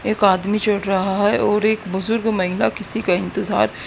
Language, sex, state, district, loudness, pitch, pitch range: Hindi, female, Haryana, Rohtak, -19 LUFS, 205 Hz, 190-215 Hz